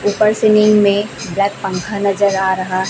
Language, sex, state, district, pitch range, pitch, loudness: Hindi, female, Chhattisgarh, Raipur, 190-210 Hz, 200 Hz, -15 LUFS